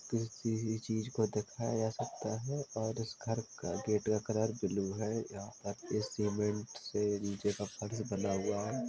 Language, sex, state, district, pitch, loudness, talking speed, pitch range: Hindi, male, Uttar Pradesh, Jalaun, 110 Hz, -37 LUFS, 190 wpm, 105-115 Hz